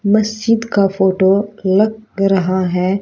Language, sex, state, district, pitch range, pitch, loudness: Hindi, female, Haryana, Rohtak, 190-215 Hz, 200 Hz, -15 LUFS